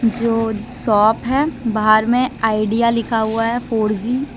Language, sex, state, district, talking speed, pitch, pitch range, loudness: Hindi, female, Jharkhand, Deoghar, 165 wpm, 225 Hz, 220-240 Hz, -17 LUFS